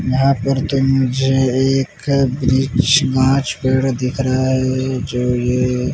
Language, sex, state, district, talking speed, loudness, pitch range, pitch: Hindi, male, Bihar, Patna, 140 wpm, -16 LUFS, 130-135 Hz, 130 Hz